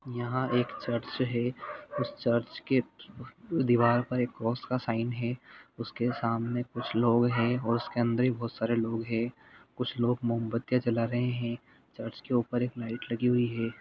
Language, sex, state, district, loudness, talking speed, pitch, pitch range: Hindi, male, Jharkhand, Jamtara, -30 LUFS, 170 wpm, 120 Hz, 115-125 Hz